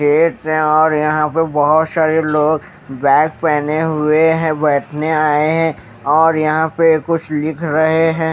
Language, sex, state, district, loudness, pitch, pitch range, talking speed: Hindi, male, Maharashtra, Mumbai Suburban, -15 LUFS, 155 Hz, 150-160 Hz, 150 wpm